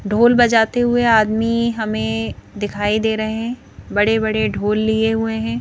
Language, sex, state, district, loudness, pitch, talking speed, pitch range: Hindi, female, Madhya Pradesh, Bhopal, -17 LUFS, 220 Hz, 160 wpm, 210-230 Hz